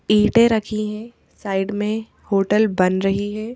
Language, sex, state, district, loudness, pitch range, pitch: Hindi, female, Madhya Pradesh, Bhopal, -19 LUFS, 195-220 Hz, 210 Hz